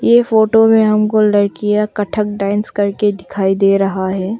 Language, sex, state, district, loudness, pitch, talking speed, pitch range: Hindi, female, Arunachal Pradesh, Longding, -14 LUFS, 210 Hz, 165 wpm, 195-215 Hz